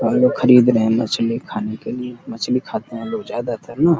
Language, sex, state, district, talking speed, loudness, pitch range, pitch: Hindi, male, Uttar Pradesh, Deoria, 225 wpm, -19 LUFS, 115-140 Hz, 125 Hz